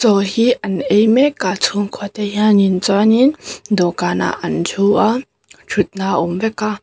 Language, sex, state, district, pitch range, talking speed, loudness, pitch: Mizo, female, Mizoram, Aizawl, 195-220 Hz, 160 wpm, -16 LUFS, 205 Hz